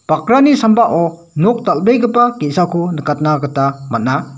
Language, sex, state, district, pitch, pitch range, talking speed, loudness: Garo, male, Meghalaya, West Garo Hills, 170 Hz, 150-230 Hz, 110 wpm, -14 LUFS